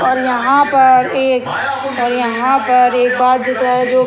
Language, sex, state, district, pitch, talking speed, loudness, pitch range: Hindi, male, Bihar, Purnia, 255 Hz, 145 wpm, -13 LUFS, 250-265 Hz